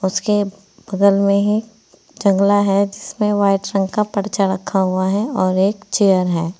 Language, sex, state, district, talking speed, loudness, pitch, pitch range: Hindi, female, Uttar Pradesh, Saharanpur, 165 wpm, -17 LUFS, 200 Hz, 190-210 Hz